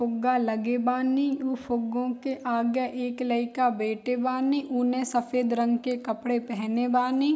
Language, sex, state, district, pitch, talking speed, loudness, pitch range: Hindi, female, Bihar, Darbhanga, 250 Hz, 145 wpm, -27 LUFS, 235-255 Hz